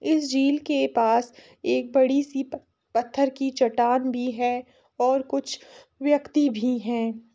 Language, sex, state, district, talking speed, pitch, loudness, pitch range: Hindi, female, Uttar Pradesh, Etah, 145 wpm, 260 Hz, -24 LUFS, 240-275 Hz